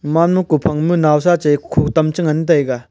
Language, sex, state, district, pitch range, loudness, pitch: Wancho, male, Arunachal Pradesh, Longding, 150-170 Hz, -15 LUFS, 155 Hz